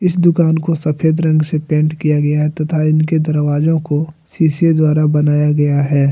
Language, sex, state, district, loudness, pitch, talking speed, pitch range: Hindi, male, Jharkhand, Deoghar, -14 LUFS, 155 Hz, 185 wpm, 150-160 Hz